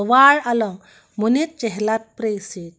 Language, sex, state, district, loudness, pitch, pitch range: Karbi, female, Assam, Karbi Anglong, -19 LUFS, 220 Hz, 210-240 Hz